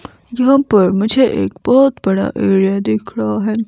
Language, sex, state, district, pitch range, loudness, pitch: Hindi, female, Himachal Pradesh, Shimla, 195-250 Hz, -14 LUFS, 210 Hz